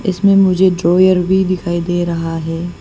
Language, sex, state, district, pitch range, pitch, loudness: Hindi, female, Arunachal Pradesh, Papum Pare, 170-190 Hz, 180 Hz, -14 LUFS